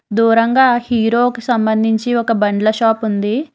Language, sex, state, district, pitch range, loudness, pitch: Telugu, female, Telangana, Hyderabad, 220-240 Hz, -15 LUFS, 230 Hz